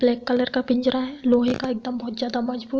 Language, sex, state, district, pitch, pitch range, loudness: Hindi, female, Uttar Pradesh, Deoria, 250 Hz, 245-255 Hz, -23 LUFS